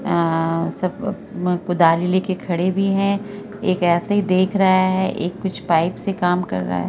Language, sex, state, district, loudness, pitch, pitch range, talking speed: Hindi, female, Bihar, Araria, -19 LUFS, 185 Hz, 175-195 Hz, 190 wpm